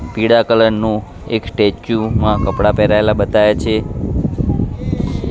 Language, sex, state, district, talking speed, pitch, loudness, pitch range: Gujarati, male, Gujarat, Gandhinagar, 115 wpm, 105 Hz, -15 LUFS, 100-110 Hz